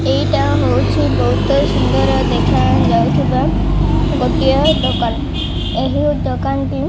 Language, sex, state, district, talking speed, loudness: Odia, female, Odisha, Malkangiri, 95 wpm, -15 LUFS